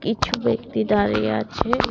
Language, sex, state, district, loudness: Bengali, female, Tripura, West Tripura, -22 LUFS